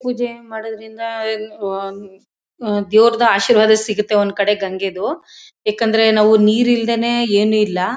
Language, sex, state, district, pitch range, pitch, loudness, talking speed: Kannada, female, Karnataka, Mysore, 205-230 Hz, 220 Hz, -16 LUFS, 100 wpm